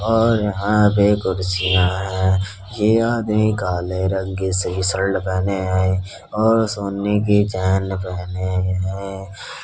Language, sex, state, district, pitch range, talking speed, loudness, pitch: Hindi, male, Uttar Pradesh, Hamirpur, 95-105 Hz, 125 wpm, -19 LUFS, 95 Hz